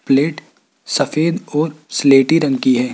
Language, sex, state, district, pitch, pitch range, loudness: Hindi, male, Rajasthan, Jaipur, 145 Hz, 135-155 Hz, -16 LUFS